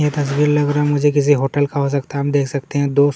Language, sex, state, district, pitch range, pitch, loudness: Hindi, male, Chhattisgarh, Kabirdham, 140-145 Hz, 145 Hz, -17 LUFS